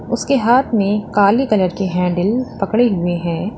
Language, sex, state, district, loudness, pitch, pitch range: Hindi, female, Uttar Pradesh, Lalitpur, -16 LUFS, 205 Hz, 180-235 Hz